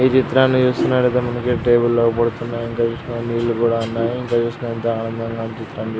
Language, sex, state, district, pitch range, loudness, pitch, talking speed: Telugu, male, Telangana, Karimnagar, 115-125 Hz, -19 LUFS, 115 Hz, 140 wpm